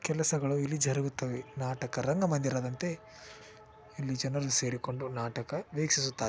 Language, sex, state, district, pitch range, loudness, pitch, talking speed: Kannada, male, Karnataka, Dakshina Kannada, 130-150 Hz, -32 LUFS, 135 Hz, 115 wpm